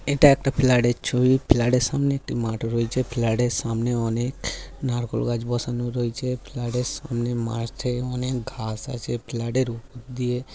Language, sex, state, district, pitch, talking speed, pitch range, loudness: Bengali, male, West Bengal, Malda, 120 Hz, 150 wpm, 120-130 Hz, -24 LUFS